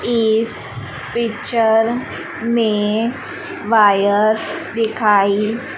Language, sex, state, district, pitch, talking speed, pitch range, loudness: Hindi, female, Madhya Pradesh, Dhar, 225 Hz, 50 wpm, 215-235 Hz, -17 LUFS